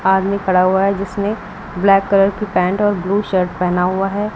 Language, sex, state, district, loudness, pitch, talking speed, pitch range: Hindi, female, Uttar Pradesh, Lucknow, -16 LUFS, 195 Hz, 205 wpm, 185-200 Hz